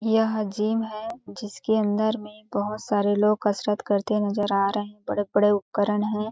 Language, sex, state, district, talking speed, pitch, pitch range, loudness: Hindi, female, Chhattisgarh, Balrampur, 180 wpm, 210 Hz, 205-220 Hz, -25 LUFS